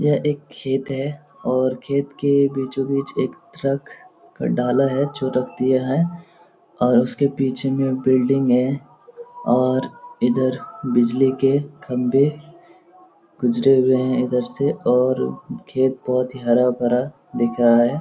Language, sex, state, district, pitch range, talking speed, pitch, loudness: Hindi, male, Bihar, Lakhisarai, 125-145 Hz, 145 wpm, 135 Hz, -20 LUFS